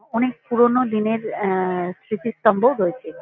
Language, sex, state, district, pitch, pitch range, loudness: Bengali, female, West Bengal, Kolkata, 220 Hz, 185-235 Hz, -20 LUFS